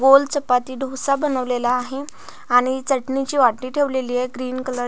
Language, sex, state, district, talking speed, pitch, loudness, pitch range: Marathi, female, Maharashtra, Pune, 245 wpm, 260 Hz, -20 LUFS, 250-275 Hz